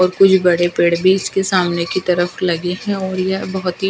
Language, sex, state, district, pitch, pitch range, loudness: Hindi, female, Himachal Pradesh, Shimla, 185 Hz, 175-190 Hz, -16 LUFS